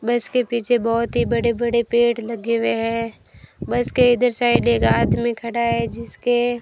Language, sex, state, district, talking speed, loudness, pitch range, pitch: Hindi, female, Rajasthan, Bikaner, 190 wpm, -19 LUFS, 230-240 Hz, 235 Hz